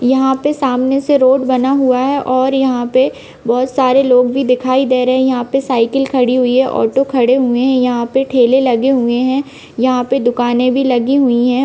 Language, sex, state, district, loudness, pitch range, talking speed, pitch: Hindi, female, Bihar, Vaishali, -13 LUFS, 250-265 Hz, 215 wpm, 255 Hz